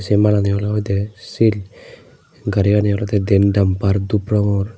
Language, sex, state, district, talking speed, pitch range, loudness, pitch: Chakma, male, Tripura, Unakoti, 140 wpm, 100-105 Hz, -17 LUFS, 105 Hz